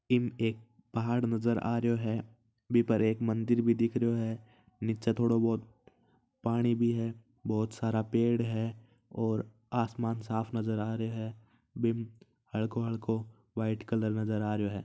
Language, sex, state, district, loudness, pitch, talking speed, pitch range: Marwari, male, Rajasthan, Churu, -32 LUFS, 115 Hz, 155 wpm, 110-115 Hz